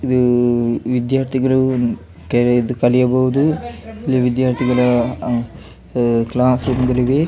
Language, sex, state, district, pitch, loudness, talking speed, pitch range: Kannada, male, Karnataka, Dakshina Kannada, 125 Hz, -17 LUFS, 65 wpm, 120-130 Hz